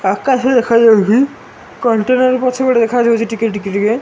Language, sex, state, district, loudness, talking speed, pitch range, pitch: Odia, male, Odisha, Malkangiri, -13 LUFS, 165 wpm, 225-255 Hz, 230 Hz